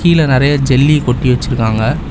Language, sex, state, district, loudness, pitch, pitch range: Tamil, male, Tamil Nadu, Chennai, -12 LUFS, 135 Hz, 125-145 Hz